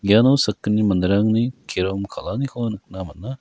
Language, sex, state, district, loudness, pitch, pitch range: Garo, male, Meghalaya, West Garo Hills, -21 LUFS, 105 Hz, 100-120 Hz